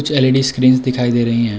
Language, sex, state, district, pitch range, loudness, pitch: Hindi, male, Uttarakhand, Tehri Garhwal, 120-130 Hz, -14 LUFS, 130 Hz